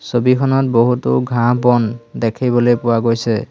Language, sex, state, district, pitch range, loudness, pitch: Assamese, male, Assam, Hailakandi, 115-125 Hz, -15 LUFS, 120 Hz